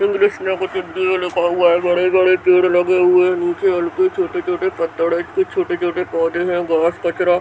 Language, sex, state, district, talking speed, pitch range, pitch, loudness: Hindi, female, Bihar, Madhepura, 185 wpm, 175-190 Hz, 180 Hz, -17 LUFS